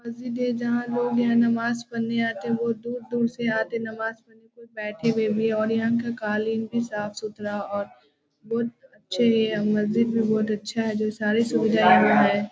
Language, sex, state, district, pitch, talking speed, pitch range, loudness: Hindi, female, Bihar, Jahanabad, 225 Hz, 200 wpm, 215-235 Hz, -24 LUFS